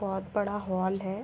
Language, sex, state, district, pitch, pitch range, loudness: Hindi, female, Uttar Pradesh, Ghazipur, 195 Hz, 190-205 Hz, -31 LUFS